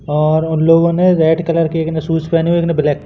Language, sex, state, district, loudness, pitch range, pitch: Hindi, male, Madhya Pradesh, Katni, -14 LUFS, 160-165 Hz, 165 Hz